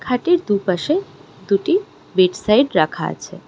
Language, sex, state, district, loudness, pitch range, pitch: Bengali, female, West Bengal, Darjeeling, -18 LUFS, 185-310 Hz, 200 Hz